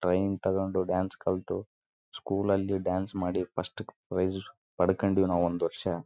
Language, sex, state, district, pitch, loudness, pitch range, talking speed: Kannada, male, Karnataka, Raichur, 95 Hz, -30 LUFS, 90-95 Hz, 90 wpm